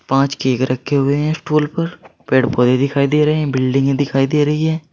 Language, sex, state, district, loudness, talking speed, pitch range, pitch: Hindi, male, Uttar Pradesh, Saharanpur, -16 LUFS, 220 wpm, 135-150 Hz, 140 Hz